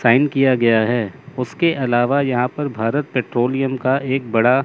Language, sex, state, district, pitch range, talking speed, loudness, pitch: Hindi, male, Chandigarh, Chandigarh, 120-135 Hz, 165 wpm, -18 LUFS, 130 Hz